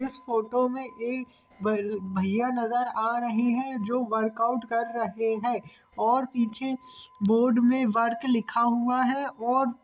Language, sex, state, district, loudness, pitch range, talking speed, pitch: Hindi, male, Chhattisgarh, Bilaspur, -27 LUFS, 225-255 Hz, 145 wpm, 240 Hz